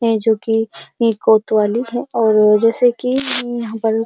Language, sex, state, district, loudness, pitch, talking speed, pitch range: Hindi, female, Uttar Pradesh, Muzaffarnagar, -15 LUFS, 225 Hz, 160 wpm, 220-240 Hz